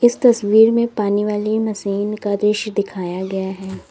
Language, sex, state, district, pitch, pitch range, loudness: Hindi, female, Uttar Pradesh, Lalitpur, 210 Hz, 200-220 Hz, -18 LUFS